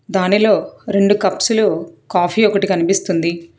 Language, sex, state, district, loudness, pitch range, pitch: Telugu, female, Telangana, Hyderabad, -16 LUFS, 175-205 Hz, 195 Hz